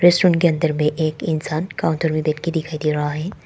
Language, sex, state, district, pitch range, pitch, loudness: Hindi, female, Arunachal Pradesh, Papum Pare, 155-170 Hz, 160 Hz, -20 LUFS